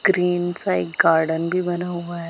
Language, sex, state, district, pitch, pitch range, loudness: Hindi, female, Punjab, Pathankot, 175 Hz, 160-180 Hz, -21 LUFS